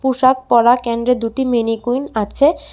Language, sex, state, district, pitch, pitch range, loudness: Bengali, female, Tripura, West Tripura, 250 Hz, 235-265 Hz, -16 LUFS